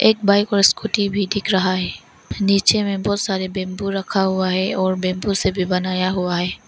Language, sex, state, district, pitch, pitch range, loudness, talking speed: Hindi, female, Arunachal Pradesh, Longding, 195 Hz, 185-200 Hz, -19 LUFS, 205 wpm